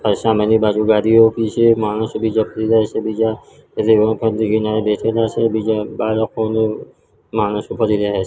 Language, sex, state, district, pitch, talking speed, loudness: Gujarati, male, Gujarat, Gandhinagar, 110 Hz, 150 wpm, -17 LUFS